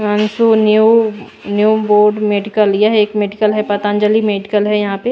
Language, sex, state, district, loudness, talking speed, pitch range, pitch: Hindi, female, Bihar, Patna, -13 LUFS, 150 wpm, 205-215 Hz, 210 Hz